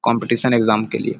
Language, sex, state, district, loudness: Hindi, male, Chhattisgarh, Bilaspur, -17 LUFS